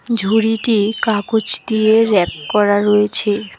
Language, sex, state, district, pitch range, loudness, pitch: Bengali, female, West Bengal, Alipurduar, 205-220 Hz, -15 LUFS, 215 Hz